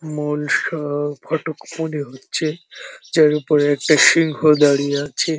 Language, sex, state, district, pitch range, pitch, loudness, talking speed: Bengali, male, West Bengal, Jhargram, 145-160 Hz, 150 Hz, -18 LUFS, 120 wpm